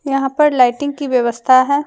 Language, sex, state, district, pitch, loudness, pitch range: Hindi, female, Jharkhand, Deoghar, 270 Hz, -15 LUFS, 255-285 Hz